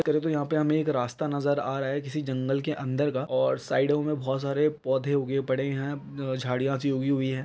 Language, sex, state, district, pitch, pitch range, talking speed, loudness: Hindi, male, Chhattisgarh, Raigarh, 140 Hz, 130-145 Hz, 240 wpm, -27 LUFS